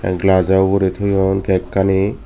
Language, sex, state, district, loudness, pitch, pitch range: Chakma, male, Tripura, Dhalai, -16 LUFS, 95 Hz, 95-100 Hz